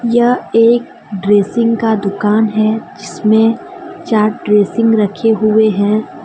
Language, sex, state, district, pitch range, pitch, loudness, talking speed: Hindi, female, Jharkhand, Deoghar, 210-230 Hz, 220 Hz, -13 LUFS, 115 wpm